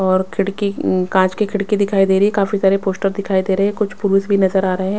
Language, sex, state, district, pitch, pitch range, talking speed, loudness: Hindi, female, Bihar, West Champaran, 195 Hz, 190-200 Hz, 275 wpm, -17 LUFS